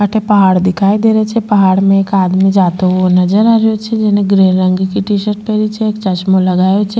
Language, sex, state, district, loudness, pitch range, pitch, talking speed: Rajasthani, female, Rajasthan, Churu, -11 LUFS, 185-215 Hz, 200 Hz, 230 wpm